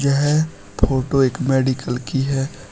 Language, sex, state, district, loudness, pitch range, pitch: Hindi, male, Uttar Pradesh, Shamli, -20 LUFS, 130-140 Hz, 135 Hz